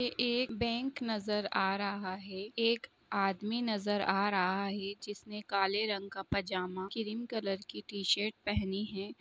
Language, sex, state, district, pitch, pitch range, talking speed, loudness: Hindi, female, Uttar Pradesh, Budaun, 205 Hz, 195-220 Hz, 150 wpm, -35 LUFS